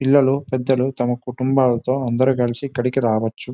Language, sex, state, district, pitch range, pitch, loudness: Telugu, male, Telangana, Nalgonda, 120-135 Hz, 130 Hz, -19 LUFS